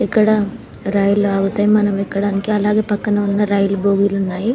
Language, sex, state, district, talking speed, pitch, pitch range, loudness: Telugu, female, Telangana, Nalgonda, 130 wpm, 205 Hz, 200-210 Hz, -16 LUFS